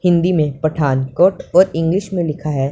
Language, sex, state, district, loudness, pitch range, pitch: Hindi, male, Punjab, Pathankot, -16 LUFS, 145-180 Hz, 165 Hz